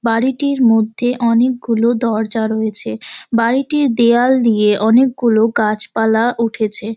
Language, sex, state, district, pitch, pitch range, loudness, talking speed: Bengali, female, West Bengal, Dakshin Dinajpur, 230 Hz, 220-245 Hz, -15 LUFS, 95 wpm